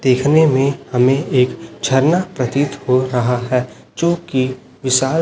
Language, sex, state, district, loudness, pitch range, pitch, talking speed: Hindi, male, Chhattisgarh, Raipur, -16 LUFS, 125-140 Hz, 130 Hz, 140 wpm